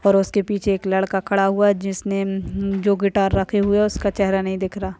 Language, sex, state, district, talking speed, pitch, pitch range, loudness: Hindi, female, West Bengal, Dakshin Dinajpur, 215 wpm, 195 Hz, 195-200 Hz, -20 LUFS